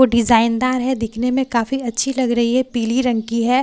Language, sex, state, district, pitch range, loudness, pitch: Hindi, female, Bihar, Katihar, 235-255 Hz, -18 LUFS, 245 Hz